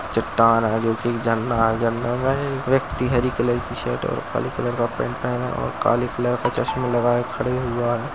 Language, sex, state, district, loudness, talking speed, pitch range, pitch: Hindi, male, Uttar Pradesh, Muzaffarnagar, -22 LUFS, 215 wpm, 115-125 Hz, 120 Hz